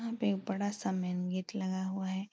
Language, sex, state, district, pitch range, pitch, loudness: Hindi, female, Uttar Pradesh, Etah, 185-205 Hz, 190 Hz, -35 LUFS